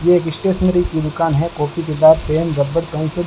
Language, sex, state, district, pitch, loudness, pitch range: Hindi, male, Rajasthan, Bikaner, 165 Hz, -16 LUFS, 155-175 Hz